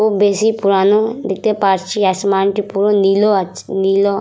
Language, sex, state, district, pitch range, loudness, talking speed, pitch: Bengali, female, West Bengal, Purulia, 195-210 Hz, -15 LUFS, 140 wpm, 200 Hz